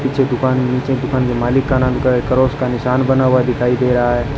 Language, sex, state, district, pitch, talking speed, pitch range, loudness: Hindi, male, Rajasthan, Bikaner, 130 Hz, 260 wpm, 125-130 Hz, -15 LUFS